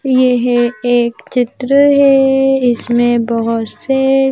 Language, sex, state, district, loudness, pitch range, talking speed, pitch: Hindi, female, Madhya Pradesh, Bhopal, -13 LUFS, 240-270 Hz, 95 wpm, 250 Hz